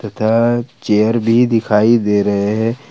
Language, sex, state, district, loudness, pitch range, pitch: Hindi, male, Jharkhand, Ranchi, -14 LUFS, 105-115 Hz, 115 Hz